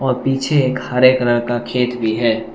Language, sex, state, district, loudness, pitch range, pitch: Hindi, male, Arunachal Pradesh, Lower Dibang Valley, -16 LUFS, 120-130 Hz, 125 Hz